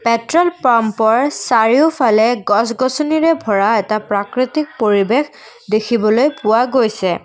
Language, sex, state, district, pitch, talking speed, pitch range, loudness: Assamese, female, Assam, Kamrup Metropolitan, 230 Hz, 100 wpm, 215-265 Hz, -15 LUFS